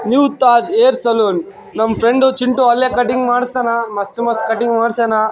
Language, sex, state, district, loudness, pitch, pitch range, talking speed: Kannada, male, Karnataka, Raichur, -14 LUFS, 240 Hz, 230-255 Hz, 170 wpm